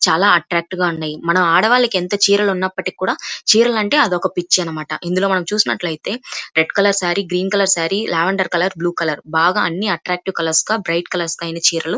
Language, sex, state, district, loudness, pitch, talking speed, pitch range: Telugu, female, Andhra Pradesh, Chittoor, -17 LUFS, 180 Hz, 190 wpm, 170-195 Hz